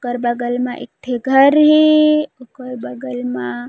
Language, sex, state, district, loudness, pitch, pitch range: Chhattisgarhi, female, Chhattisgarh, Raigarh, -15 LUFS, 250 Hz, 180-275 Hz